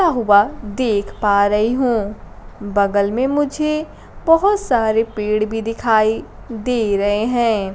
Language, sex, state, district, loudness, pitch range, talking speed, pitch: Hindi, female, Bihar, Kaimur, -17 LUFS, 205-250 Hz, 130 wpm, 225 Hz